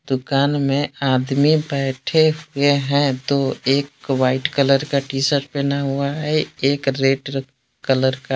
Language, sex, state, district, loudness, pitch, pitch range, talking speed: Hindi, male, Jharkhand, Palamu, -19 LUFS, 140 Hz, 135-145 Hz, 145 wpm